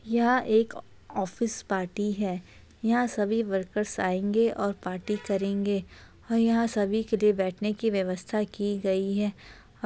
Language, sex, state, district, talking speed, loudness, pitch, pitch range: Hindi, female, Chhattisgarh, Bastar, 145 wpm, -28 LUFS, 205 Hz, 195-225 Hz